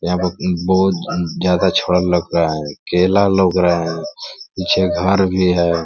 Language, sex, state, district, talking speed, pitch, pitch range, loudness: Hindi, male, Uttar Pradesh, Ghazipur, 165 wpm, 90 Hz, 85-95 Hz, -16 LUFS